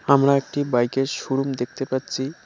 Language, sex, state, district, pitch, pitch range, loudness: Bengali, male, West Bengal, Cooch Behar, 135 Hz, 130-140 Hz, -22 LUFS